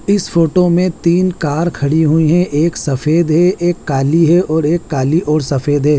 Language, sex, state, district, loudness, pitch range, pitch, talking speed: Hindi, male, Chhattisgarh, Raipur, -13 LUFS, 150-175 Hz, 165 Hz, 200 wpm